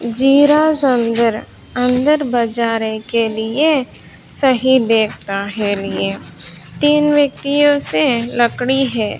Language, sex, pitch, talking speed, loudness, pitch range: Hindi, female, 250 Hz, 85 wpm, -15 LUFS, 225-280 Hz